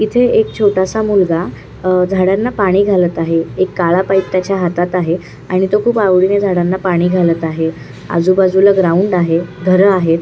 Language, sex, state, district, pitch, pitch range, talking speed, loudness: Marathi, female, Maharashtra, Chandrapur, 185 Hz, 170-195 Hz, 165 wpm, -13 LUFS